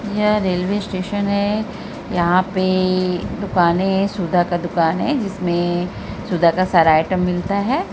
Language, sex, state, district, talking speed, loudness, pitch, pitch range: Hindi, female, Bihar, Araria, 145 wpm, -18 LUFS, 185 Hz, 175-200 Hz